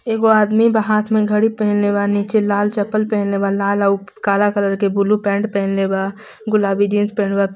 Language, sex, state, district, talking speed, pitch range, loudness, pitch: Bhojpuri, female, Jharkhand, Palamu, 220 wpm, 200-215 Hz, -17 LUFS, 205 Hz